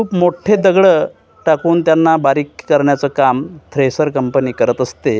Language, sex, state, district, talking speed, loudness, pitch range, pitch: Marathi, male, Maharashtra, Gondia, 140 wpm, -14 LUFS, 135-170 Hz, 155 Hz